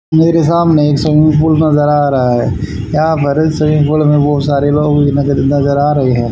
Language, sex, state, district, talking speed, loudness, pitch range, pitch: Hindi, male, Haryana, Charkhi Dadri, 220 wpm, -11 LUFS, 140-155 Hz, 145 Hz